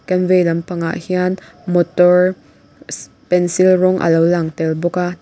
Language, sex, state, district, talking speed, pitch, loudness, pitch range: Mizo, female, Mizoram, Aizawl, 170 wpm, 180 Hz, -15 LUFS, 170-185 Hz